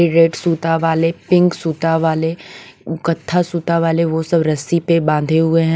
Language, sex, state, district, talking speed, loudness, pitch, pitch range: Hindi, female, Bihar, West Champaran, 165 wpm, -16 LUFS, 165 Hz, 160-170 Hz